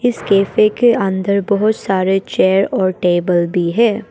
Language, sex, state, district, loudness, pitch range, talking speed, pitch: Hindi, female, Arunachal Pradesh, Papum Pare, -15 LUFS, 185-215 Hz, 145 wpm, 195 Hz